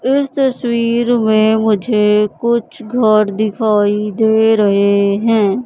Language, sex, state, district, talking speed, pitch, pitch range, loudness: Hindi, female, Madhya Pradesh, Katni, 105 wpm, 220 Hz, 210-235 Hz, -14 LUFS